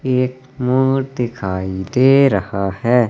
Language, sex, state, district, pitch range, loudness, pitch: Hindi, male, Madhya Pradesh, Katni, 100-130 Hz, -17 LUFS, 125 Hz